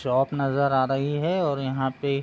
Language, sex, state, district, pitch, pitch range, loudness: Hindi, male, Bihar, Sitamarhi, 140 Hz, 135-140 Hz, -25 LUFS